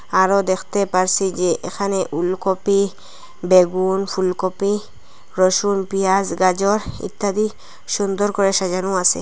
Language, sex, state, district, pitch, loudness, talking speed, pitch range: Bengali, female, Assam, Hailakandi, 190 Hz, -19 LUFS, 105 wpm, 185-200 Hz